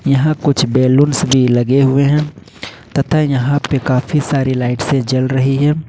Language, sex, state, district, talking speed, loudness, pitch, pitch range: Hindi, male, Jharkhand, Ranchi, 165 wpm, -14 LUFS, 135 Hz, 130-145 Hz